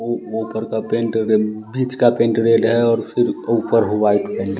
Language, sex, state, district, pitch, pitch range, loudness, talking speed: Hindi, male, Bihar, West Champaran, 115 Hz, 110-115 Hz, -18 LUFS, 195 wpm